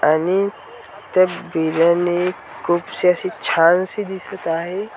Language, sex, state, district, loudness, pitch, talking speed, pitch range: Marathi, male, Maharashtra, Washim, -19 LUFS, 175 Hz, 85 wpm, 165-190 Hz